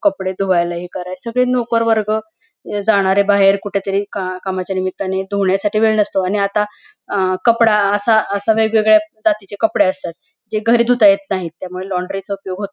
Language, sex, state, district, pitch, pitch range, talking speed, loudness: Marathi, female, Maharashtra, Pune, 200 Hz, 190-220 Hz, 165 wpm, -17 LUFS